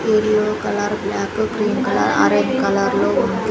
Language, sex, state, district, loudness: Telugu, female, Andhra Pradesh, Sri Satya Sai, -18 LUFS